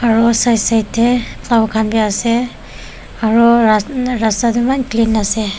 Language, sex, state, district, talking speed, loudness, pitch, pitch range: Nagamese, female, Nagaland, Dimapur, 160 wpm, -14 LUFS, 230 Hz, 220-235 Hz